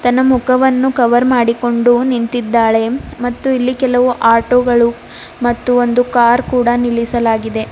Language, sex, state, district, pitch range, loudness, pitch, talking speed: Kannada, female, Karnataka, Bidar, 235-250 Hz, -13 LUFS, 245 Hz, 110 wpm